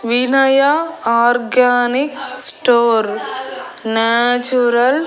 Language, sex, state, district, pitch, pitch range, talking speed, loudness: Telugu, female, Andhra Pradesh, Annamaya, 245 Hz, 235-265 Hz, 60 wpm, -14 LUFS